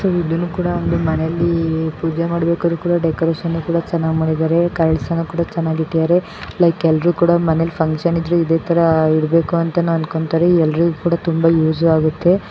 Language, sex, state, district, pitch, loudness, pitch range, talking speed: Kannada, female, Karnataka, Bellary, 165 Hz, -17 LUFS, 160-170 Hz, 150 wpm